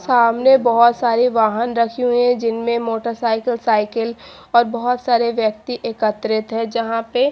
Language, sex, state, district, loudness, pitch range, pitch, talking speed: Hindi, female, Haryana, Charkhi Dadri, -17 LUFS, 225-245 Hz, 235 Hz, 150 wpm